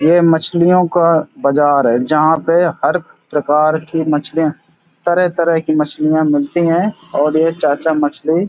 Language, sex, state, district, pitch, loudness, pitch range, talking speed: Hindi, male, Uttar Pradesh, Hamirpur, 160 Hz, -14 LUFS, 150-170 Hz, 150 wpm